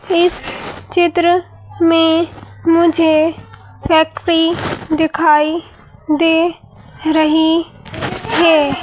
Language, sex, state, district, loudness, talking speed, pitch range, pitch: Hindi, female, Madhya Pradesh, Bhopal, -14 LUFS, 60 wpm, 315-340 Hz, 325 Hz